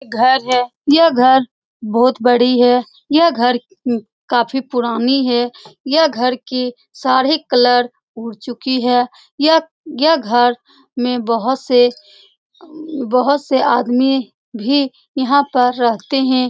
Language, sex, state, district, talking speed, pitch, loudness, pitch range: Hindi, female, Bihar, Saran, 140 wpm, 250 Hz, -15 LUFS, 245-275 Hz